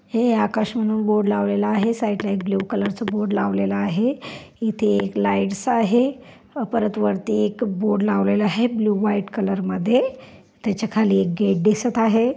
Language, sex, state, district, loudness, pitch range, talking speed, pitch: Marathi, female, Maharashtra, Pune, -21 LUFS, 200-225 Hz, 165 wpm, 210 Hz